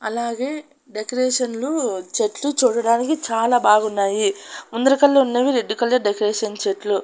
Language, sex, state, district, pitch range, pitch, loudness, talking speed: Telugu, female, Andhra Pradesh, Annamaya, 215-270 Hz, 235 Hz, -19 LUFS, 100 wpm